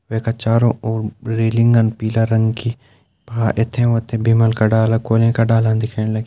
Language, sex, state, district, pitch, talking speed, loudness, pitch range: Garhwali, male, Uttarakhand, Uttarkashi, 115 Hz, 170 wpm, -17 LUFS, 110-115 Hz